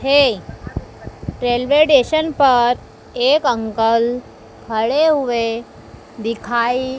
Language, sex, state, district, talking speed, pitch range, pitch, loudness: Hindi, female, Madhya Pradesh, Dhar, 75 wpm, 230-280 Hz, 245 Hz, -16 LUFS